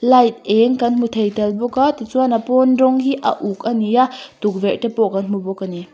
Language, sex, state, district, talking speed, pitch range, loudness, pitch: Mizo, female, Mizoram, Aizawl, 280 wpm, 205-255 Hz, -17 LUFS, 235 Hz